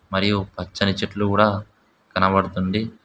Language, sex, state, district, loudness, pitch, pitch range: Telugu, male, Telangana, Hyderabad, -22 LUFS, 100 Hz, 95-105 Hz